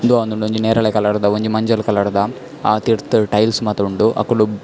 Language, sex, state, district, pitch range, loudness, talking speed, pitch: Tulu, male, Karnataka, Dakshina Kannada, 105-110 Hz, -17 LUFS, 195 wpm, 110 Hz